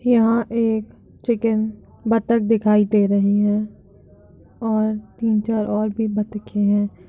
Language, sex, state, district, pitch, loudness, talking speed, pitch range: Hindi, female, Uttar Pradesh, Jyotiba Phule Nagar, 215 Hz, -20 LUFS, 120 wpm, 210-225 Hz